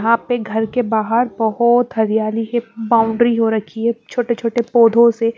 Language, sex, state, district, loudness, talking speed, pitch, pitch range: Hindi, female, Bihar, West Champaran, -16 LUFS, 165 wpm, 230 Hz, 225-235 Hz